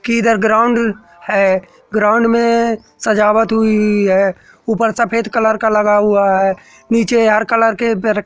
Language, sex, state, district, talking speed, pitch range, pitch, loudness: Hindi, male, Madhya Pradesh, Katni, 145 wpm, 210-230 Hz, 220 Hz, -14 LUFS